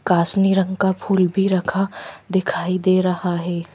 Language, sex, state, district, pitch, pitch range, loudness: Hindi, female, Madhya Pradesh, Bhopal, 185 Hz, 180-195 Hz, -19 LUFS